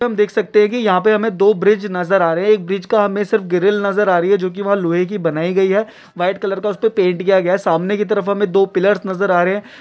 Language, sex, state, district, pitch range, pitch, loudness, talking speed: Hindi, male, Uttar Pradesh, Etah, 185-210 Hz, 200 Hz, -16 LUFS, 310 wpm